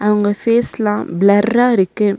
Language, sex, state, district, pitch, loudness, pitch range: Tamil, female, Tamil Nadu, Nilgiris, 210 Hz, -15 LUFS, 205-230 Hz